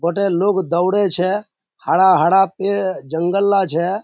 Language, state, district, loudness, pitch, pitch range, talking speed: Surjapuri, Bihar, Kishanganj, -17 LUFS, 190 Hz, 180-200 Hz, 135 wpm